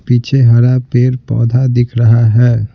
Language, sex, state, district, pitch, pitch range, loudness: Hindi, male, Bihar, Patna, 120 Hz, 120-125 Hz, -11 LUFS